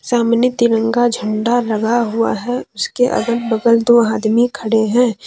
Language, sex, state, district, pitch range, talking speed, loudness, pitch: Hindi, female, Jharkhand, Deoghar, 225-240 Hz, 150 wpm, -15 LUFS, 235 Hz